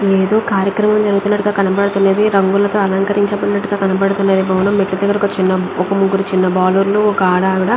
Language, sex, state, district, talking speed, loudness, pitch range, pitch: Telugu, female, Andhra Pradesh, Chittoor, 155 wpm, -14 LUFS, 190-205 Hz, 195 Hz